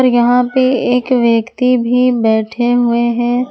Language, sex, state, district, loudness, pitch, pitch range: Hindi, female, Jharkhand, Ranchi, -13 LUFS, 245 Hz, 235-250 Hz